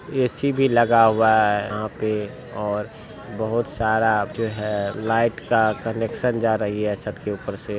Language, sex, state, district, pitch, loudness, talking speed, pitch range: Hindi, male, Bihar, Saharsa, 110 Hz, -22 LUFS, 170 wpm, 105-115 Hz